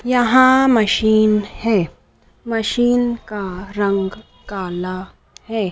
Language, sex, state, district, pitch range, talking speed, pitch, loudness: Hindi, female, Madhya Pradesh, Dhar, 195-240 Hz, 85 wpm, 215 Hz, -17 LUFS